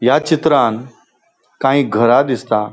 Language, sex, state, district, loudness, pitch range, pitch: Konkani, male, Goa, North and South Goa, -14 LUFS, 110-145 Hz, 135 Hz